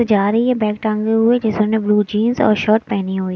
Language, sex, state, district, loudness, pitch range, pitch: Hindi, female, Chhattisgarh, Raipur, -16 LUFS, 210-225 Hz, 215 Hz